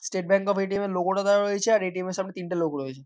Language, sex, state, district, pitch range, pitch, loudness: Bengali, male, West Bengal, North 24 Parganas, 180-200 Hz, 195 Hz, -25 LUFS